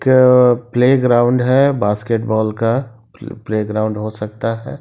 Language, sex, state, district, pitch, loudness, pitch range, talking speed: Hindi, male, Bihar, East Champaran, 115 Hz, -15 LUFS, 110-125 Hz, 160 wpm